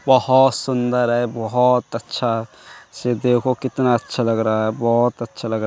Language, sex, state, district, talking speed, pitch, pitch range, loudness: Hindi, male, Uttar Pradesh, Budaun, 190 wpm, 120 Hz, 115-125 Hz, -19 LUFS